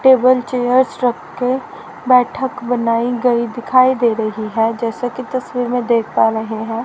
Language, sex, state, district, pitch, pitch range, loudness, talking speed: Hindi, female, Haryana, Rohtak, 245 Hz, 230-255 Hz, -16 LUFS, 155 wpm